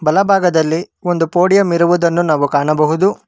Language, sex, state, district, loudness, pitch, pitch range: Kannada, male, Karnataka, Bangalore, -14 LUFS, 170 Hz, 155-180 Hz